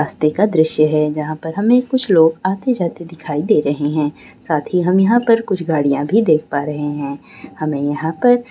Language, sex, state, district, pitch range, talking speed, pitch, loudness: Hindi, female, West Bengal, Jalpaiguri, 150-190 Hz, 210 wpm, 160 Hz, -16 LUFS